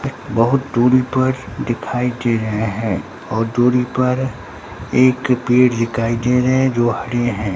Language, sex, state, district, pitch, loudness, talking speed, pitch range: Hindi, male, Bihar, Katihar, 120 Hz, -17 LUFS, 150 wpm, 115-125 Hz